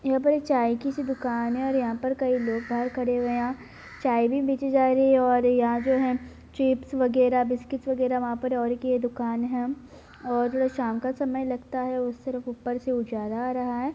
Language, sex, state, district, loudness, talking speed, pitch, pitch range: Hindi, female, Bihar, Bhagalpur, -26 LUFS, 230 wpm, 250 Hz, 245-265 Hz